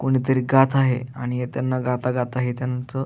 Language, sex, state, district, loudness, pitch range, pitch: Marathi, male, Maharashtra, Aurangabad, -22 LUFS, 125-130 Hz, 125 Hz